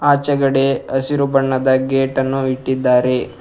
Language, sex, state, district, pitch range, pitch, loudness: Kannada, male, Karnataka, Bangalore, 130-135 Hz, 135 Hz, -16 LUFS